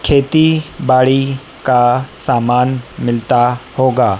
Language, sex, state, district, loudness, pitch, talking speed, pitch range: Hindi, female, Madhya Pradesh, Dhar, -14 LUFS, 130 Hz, 85 wpm, 120-135 Hz